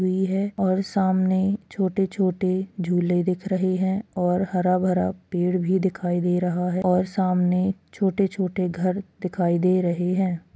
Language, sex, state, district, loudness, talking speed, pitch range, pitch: Hindi, female, Chhattisgarh, Kabirdham, -23 LUFS, 140 wpm, 180-190 Hz, 185 Hz